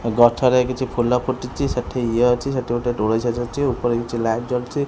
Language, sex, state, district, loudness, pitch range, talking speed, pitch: Odia, female, Odisha, Khordha, -20 LUFS, 120-125 Hz, 185 wpm, 125 Hz